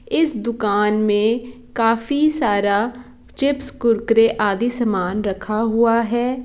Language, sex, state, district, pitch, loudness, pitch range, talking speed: Hindi, female, Bihar, Saran, 230 Hz, -19 LUFS, 210-245 Hz, 110 wpm